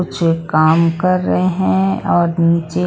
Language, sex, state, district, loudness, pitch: Hindi, female, Punjab, Pathankot, -15 LUFS, 165 Hz